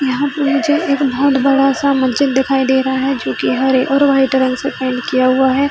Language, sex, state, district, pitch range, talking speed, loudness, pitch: Hindi, female, Chhattisgarh, Bilaspur, 260-280 Hz, 230 wpm, -14 LUFS, 270 Hz